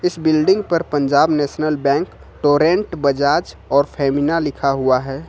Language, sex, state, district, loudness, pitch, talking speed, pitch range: Hindi, male, Jharkhand, Ranchi, -17 LUFS, 145 Hz, 145 wpm, 140-160 Hz